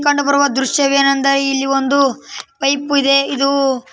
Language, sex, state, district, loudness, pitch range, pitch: Kannada, female, Karnataka, Raichur, -14 LUFS, 275-280 Hz, 275 Hz